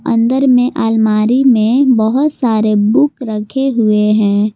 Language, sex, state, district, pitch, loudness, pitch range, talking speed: Hindi, female, Jharkhand, Palamu, 230 Hz, -12 LUFS, 215-260 Hz, 130 wpm